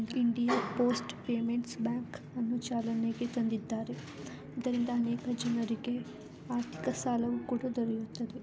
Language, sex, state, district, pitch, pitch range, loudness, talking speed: Kannada, female, Karnataka, Shimoga, 235 Hz, 230-245 Hz, -34 LUFS, 100 wpm